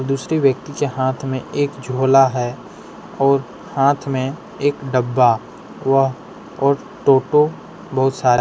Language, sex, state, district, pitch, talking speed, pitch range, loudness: Hindi, male, Jharkhand, Deoghar, 135 Hz, 135 wpm, 130-140 Hz, -18 LUFS